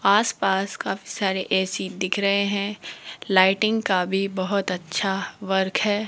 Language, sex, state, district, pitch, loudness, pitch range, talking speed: Hindi, female, Rajasthan, Jaipur, 195 Hz, -23 LUFS, 190-200 Hz, 150 wpm